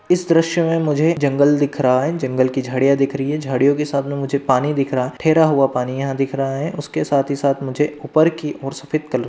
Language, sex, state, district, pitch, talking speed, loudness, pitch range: Hindi, male, Maharashtra, Dhule, 140 Hz, 260 wpm, -18 LUFS, 135-150 Hz